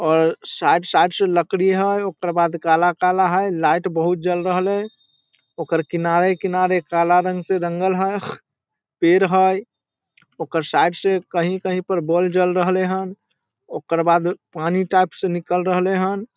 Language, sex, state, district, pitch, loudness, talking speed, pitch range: Maithili, male, Bihar, Samastipur, 180 Hz, -19 LUFS, 170 wpm, 170-190 Hz